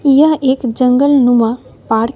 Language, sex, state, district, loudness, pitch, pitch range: Hindi, female, Bihar, West Champaran, -12 LUFS, 255 Hz, 240-280 Hz